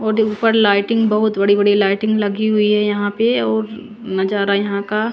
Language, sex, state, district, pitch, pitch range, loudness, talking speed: Hindi, female, Chandigarh, Chandigarh, 210 Hz, 205-220 Hz, -16 LUFS, 185 wpm